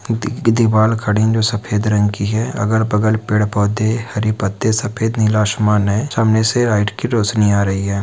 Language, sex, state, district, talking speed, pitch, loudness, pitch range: Hindi, male, Bihar, Araria, 185 wpm, 110 Hz, -16 LUFS, 105-110 Hz